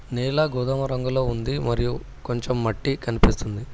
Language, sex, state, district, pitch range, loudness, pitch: Telugu, male, Telangana, Hyderabad, 120-135 Hz, -25 LUFS, 125 Hz